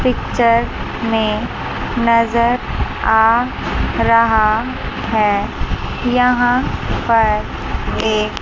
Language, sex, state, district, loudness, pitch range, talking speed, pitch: Hindi, male, Chandigarh, Chandigarh, -16 LUFS, 220-240 Hz, 70 wpm, 230 Hz